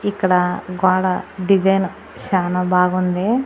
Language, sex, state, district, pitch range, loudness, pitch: Telugu, female, Andhra Pradesh, Annamaya, 180-195 Hz, -18 LUFS, 185 Hz